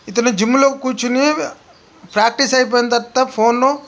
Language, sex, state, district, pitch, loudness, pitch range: Telugu, male, Andhra Pradesh, Krishna, 250 Hz, -15 LUFS, 235-265 Hz